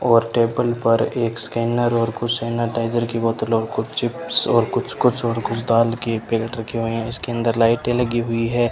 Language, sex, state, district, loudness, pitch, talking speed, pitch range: Hindi, male, Rajasthan, Bikaner, -20 LUFS, 115 Hz, 205 wpm, 115-120 Hz